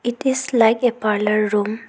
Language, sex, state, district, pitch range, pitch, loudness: English, female, Arunachal Pradesh, Longding, 215-245 Hz, 225 Hz, -18 LUFS